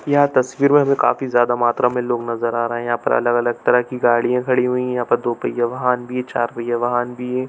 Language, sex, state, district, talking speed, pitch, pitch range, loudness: Hindi, male, Chhattisgarh, Bilaspur, 240 wpm, 125 Hz, 120-125 Hz, -19 LUFS